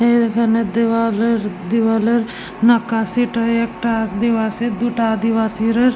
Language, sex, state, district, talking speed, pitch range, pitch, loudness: Bengali, female, West Bengal, Jalpaiguri, 120 wpm, 225-235 Hz, 230 Hz, -17 LUFS